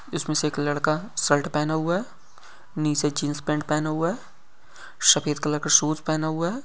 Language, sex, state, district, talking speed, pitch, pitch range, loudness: Hindi, male, Uttar Pradesh, Deoria, 180 wpm, 155 Hz, 150-165 Hz, -23 LUFS